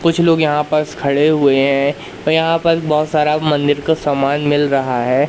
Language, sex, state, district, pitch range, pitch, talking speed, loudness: Hindi, male, Madhya Pradesh, Katni, 140-155 Hz, 150 Hz, 205 wpm, -15 LUFS